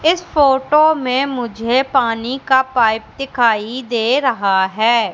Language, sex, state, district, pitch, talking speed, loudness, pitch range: Hindi, female, Madhya Pradesh, Katni, 255 Hz, 130 wpm, -16 LUFS, 230-275 Hz